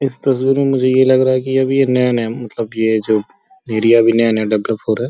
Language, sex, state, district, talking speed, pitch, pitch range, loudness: Hindi, male, Uttar Pradesh, Gorakhpur, 295 wpm, 125 Hz, 110-130 Hz, -15 LUFS